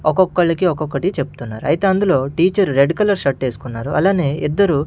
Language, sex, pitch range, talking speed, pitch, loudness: Telugu, male, 140-185 Hz, 160 wpm, 165 Hz, -17 LUFS